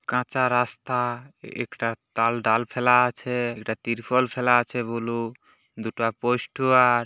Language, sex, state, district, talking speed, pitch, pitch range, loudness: Bengali, male, West Bengal, Purulia, 135 wpm, 120 Hz, 115-125 Hz, -24 LUFS